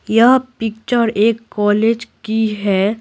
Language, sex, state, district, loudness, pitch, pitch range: Hindi, female, Bihar, Patna, -16 LUFS, 220 Hz, 210-230 Hz